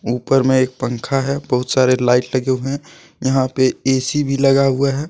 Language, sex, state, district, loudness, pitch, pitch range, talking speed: Hindi, male, Jharkhand, Deoghar, -17 LUFS, 130 Hz, 130-135 Hz, 210 wpm